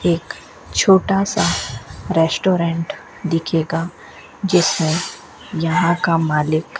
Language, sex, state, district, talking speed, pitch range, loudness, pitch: Hindi, female, Rajasthan, Bikaner, 90 wpm, 160-180 Hz, -18 LUFS, 165 Hz